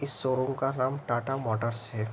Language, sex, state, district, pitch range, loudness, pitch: Hindi, male, Bihar, Araria, 115-135 Hz, -30 LUFS, 130 Hz